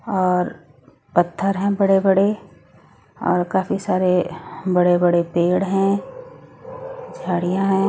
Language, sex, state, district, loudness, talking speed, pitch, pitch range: Hindi, female, Odisha, Nuapada, -19 LUFS, 105 wpm, 190 Hz, 175-195 Hz